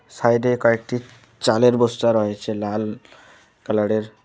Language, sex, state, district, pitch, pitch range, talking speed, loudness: Bengali, male, West Bengal, Alipurduar, 115 Hz, 110-125 Hz, 100 wpm, -20 LUFS